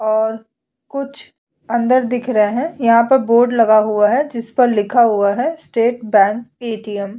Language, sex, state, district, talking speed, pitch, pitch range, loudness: Hindi, female, Chhattisgarh, Sukma, 190 wpm, 235 Hz, 215-245 Hz, -16 LUFS